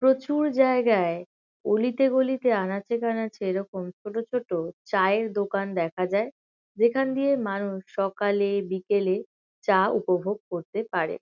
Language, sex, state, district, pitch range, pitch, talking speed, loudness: Bengali, female, West Bengal, Kolkata, 190-235 Hz, 205 Hz, 105 wpm, -26 LUFS